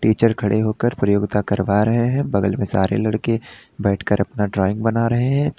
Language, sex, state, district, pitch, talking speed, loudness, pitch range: Hindi, male, Uttar Pradesh, Lalitpur, 110 Hz, 180 wpm, -19 LUFS, 100-115 Hz